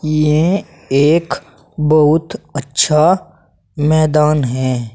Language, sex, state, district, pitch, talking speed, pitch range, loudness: Hindi, male, Uttar Pradesh, Saharanpur, 150 Hz, 75 wpm, 145-160 Hz, -14 LUFS